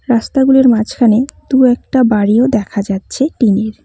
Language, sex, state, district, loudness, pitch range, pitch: Bengali, female, West Bengal, Cooch Behar, -12 LUFS, 215-260 Hz, 240 Hz